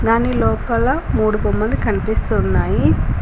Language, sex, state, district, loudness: Telugu, female, Telangana, Komaram Bheem, -18 LUFS